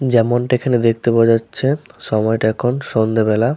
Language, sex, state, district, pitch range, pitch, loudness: Bengali, male, West Bengal, Malda, 110-125 Hz, 115 Hz, -17 LUFS